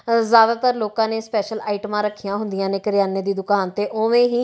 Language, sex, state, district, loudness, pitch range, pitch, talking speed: Punjabi, female, Punjab, Kapurthala, -20 LUFS, 200-225 Hz, 210 Hz, 190 wpm